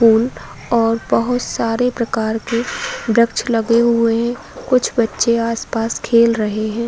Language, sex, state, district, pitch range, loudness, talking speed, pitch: Hindi, female, Uttar Pradesh, Varanasi, 225-235 Hz, -17 LUFS, 140 wpm, 230 Hz